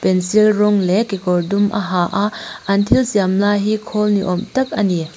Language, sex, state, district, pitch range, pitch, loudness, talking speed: Mizo, female, Mizoram, Aizawl, 185-210 Hz, 205 Hz, -17 LUFS, 210 wpm